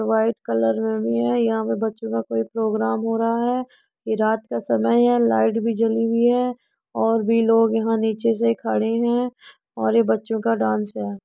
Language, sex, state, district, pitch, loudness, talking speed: Hindi, female, Uttar Pradesh, Budaun, 220 Hz, -21 LUFS, 190 wpm